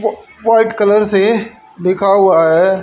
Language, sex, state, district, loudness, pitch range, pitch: Hindi, female, Haryana, Charkhi Dadri, -12 LUFS, 190-220 Hz, 210 Hz